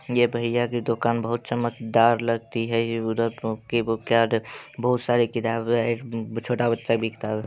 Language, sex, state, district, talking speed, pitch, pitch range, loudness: Hindi, male, Bihar, Saharsa, 160 wpm, 115 Hz, 115-120 Hz, -24 LUFS